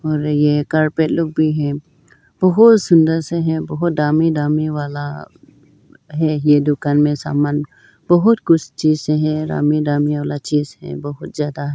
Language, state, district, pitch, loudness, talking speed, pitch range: Hindi, Arunachal Pradesh, Lower Dibang Valley, 150 Hz, -17 LUFS, 155 wpm, 145-160 Hz